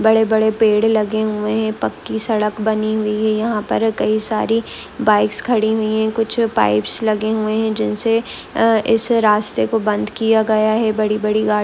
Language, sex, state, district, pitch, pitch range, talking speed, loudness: Hindi, female, West Bengal, Malda, 220 Hz, 215-220 Hz, 185 wpm, -17 LUFS